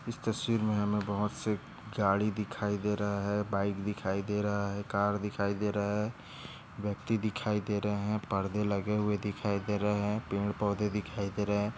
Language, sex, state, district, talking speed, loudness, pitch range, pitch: Hindi, male, Maharashtra, Aurangabad, 200 wpm, -33 LUFS, 100-105 Hz, 105 Hz